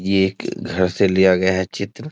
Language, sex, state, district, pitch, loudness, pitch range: Hindi, male, Bihar, East Champaran, 95 Hz, -19 LUFS, 95-100 Hz